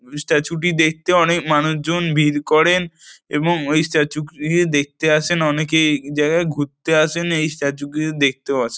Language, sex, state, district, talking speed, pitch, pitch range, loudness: Bengali, male, West Bengal, North 24 Parganas, 165 wpm, 155 Hz, 150-165 Hz, -18 LUFS